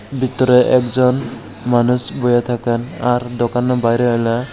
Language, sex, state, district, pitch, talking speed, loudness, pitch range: Bengali, male, Tripura, Unakoti, 120 Hz, 120 wpm, -16 LUFS, 120-125 Hz